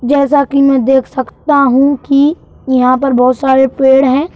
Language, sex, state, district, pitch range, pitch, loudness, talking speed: Hindi, male, Madhya Pradesh, Bhopal, 260-280 Hz, 270 Hz, -10 LUFS, 180 wpm